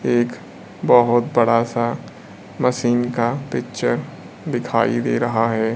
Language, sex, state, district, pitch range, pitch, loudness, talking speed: Hindi, male, Bihar, Kaimur, 115-120 Hz, 120 Hz, -19 LUFS, 115 wpm